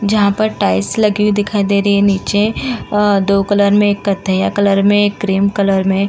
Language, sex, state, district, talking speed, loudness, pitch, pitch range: Hindi, female, Uttar Pradesh, Jalaun, 205 wpm, -14 LUFS, 200 Hz, 200-205 Hz